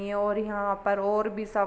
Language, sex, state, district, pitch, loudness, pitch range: Hindi, female, Uttar Pradesh, Varanasi, 205 Hz, -28 LUFS, 200-215 Hz